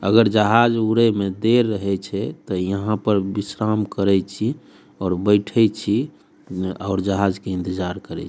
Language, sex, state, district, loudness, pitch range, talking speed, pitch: Maithili, male, Bihar, Darbhanga, -20 LUFS, 95-110 Hz, 160 wpm, 100 Hz